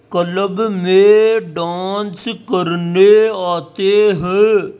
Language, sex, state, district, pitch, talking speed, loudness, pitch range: Hindi, male, Rajasthan, Jaipur, 195 Hz, 75 wpm, -14 LUFS, 180-220 Hz